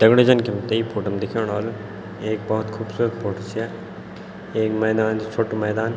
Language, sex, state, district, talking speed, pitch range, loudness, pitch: Garhwali, male, Uttarakhand, Tehri Garhwal, 200 wpm, 105-115 Hz, -22 LUFS, 110 Hz